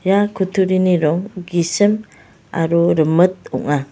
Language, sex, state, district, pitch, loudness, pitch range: Garo, female, Meghalaya, West Garo Hills, 180 Hz, -17 LUFS, 165-190 Hz